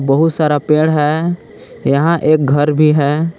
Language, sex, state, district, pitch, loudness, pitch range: Hindi, male, Jharkhand, Palamu, 155 Hz, -13 LUFS, 145-160 Hz